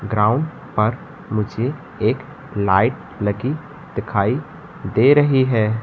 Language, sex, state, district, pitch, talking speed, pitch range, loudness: Hindi, male, Madhya Pradesh, Katni, 120 Hz, 105 wpm, 105-150 Hz, -20 LUFS